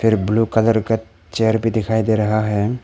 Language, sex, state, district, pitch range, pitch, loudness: Hindi, male, Arunachal Pradesh, Papum Pare, 110-115 Hz, 110 Hz, -18 LUFS